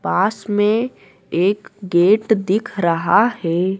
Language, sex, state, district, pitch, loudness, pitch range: Hindi, female, Madhya Pradesh, Dhar, 200 Hz, -18 LUFS, 180-215 Hz